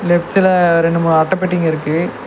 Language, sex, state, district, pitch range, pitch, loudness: Tamil, male, Tamil Nadu, Nilgiris, 165-180 Hz, 170 Hz, -14 LUFS